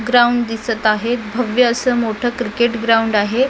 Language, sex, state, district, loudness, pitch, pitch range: Marathi, female, Maharashtra, Mumbai Suburban, -16 LUFS, 235 Hz, 225-245 Hz